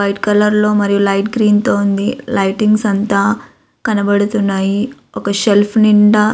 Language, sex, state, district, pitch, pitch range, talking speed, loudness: Telugu, female, Andhra Pradesh, Visakhapatnam, 210 Hz, 200-215 Hz, 140 wpm, -14 LUFS